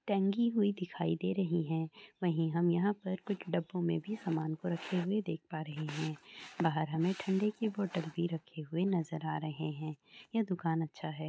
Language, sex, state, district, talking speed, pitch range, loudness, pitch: Hindi, female, Andhra Pradesh, Chittoor, 325 wpm, 160-195 Hz, -35 LUFS, 170 Hz